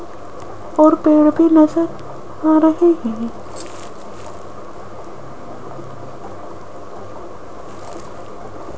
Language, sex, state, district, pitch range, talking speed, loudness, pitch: Hindi, female, Rajasthan, Jaipur, 305-325 Hz, 50 wpm, -14 LUFS, 315 Hz